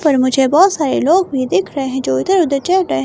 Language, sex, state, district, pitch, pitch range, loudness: Hindi, female, Himachal Pradesh, Shimla, 290 Hz, 265-370 Hz, -14 LUFS